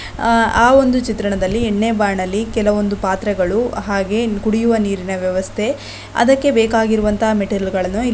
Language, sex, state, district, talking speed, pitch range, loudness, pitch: Kannada, female, Karnataka, Belgaum, 130 wpm, 200-230 Hz, -16 LUFS, 215 Hz